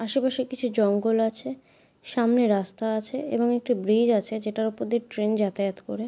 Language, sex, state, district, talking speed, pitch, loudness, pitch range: Bengali, female, West Bengal, Paschim Medinipur, 170 wpm, 225 Hz, -25 LUFS, 215-245 Hz